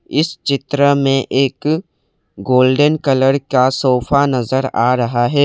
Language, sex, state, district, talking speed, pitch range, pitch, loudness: Hindi, male, Assam, Kamrup Metropolitan, 130 wpm, 130-145 Hz, 135 Hz, -15 LUFS